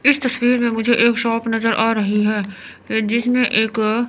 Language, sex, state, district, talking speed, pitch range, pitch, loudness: Hindi, female, Chandigarh, Chandigarh, 175 wpm, 220-240 Hz, 230 Hz, -17 LUFS